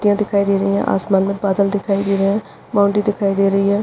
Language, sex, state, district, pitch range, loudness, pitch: Hindi, female, Uttarakhand, Uttarkashi, 195-205 Hz, -17 LUFS, 200 Hz